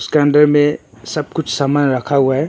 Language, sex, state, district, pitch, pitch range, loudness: Hindi, male, Arunachal Pradesh, Longding, 145 Hz, 135-150 Hz, -15 LUFS